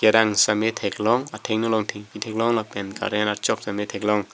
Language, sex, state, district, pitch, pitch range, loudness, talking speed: Karbi, male, Assam, Karbi Anglong, 105 Hz, 105-110 Hz, -23 LUFS, 165 wpm